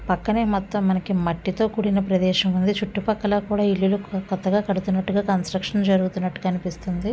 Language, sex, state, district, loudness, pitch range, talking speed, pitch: Telugu, female, Andhra Pradesh, Visakhapatnam, -22 LUFS, 185-205 Hz, 135 wpm, 195 Hz